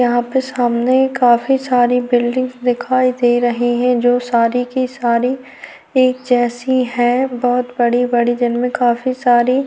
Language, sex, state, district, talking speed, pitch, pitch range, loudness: Hindi, female, Chhattisgarh, Korba, 135 wpm, 245 Hz, 240-255 Hz, -15 LUFS